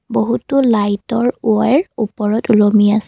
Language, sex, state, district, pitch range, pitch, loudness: Assamese, female, Assam, Kamrup Metropolitan, 210-240 Hz, 220 Hz, -15 LUFS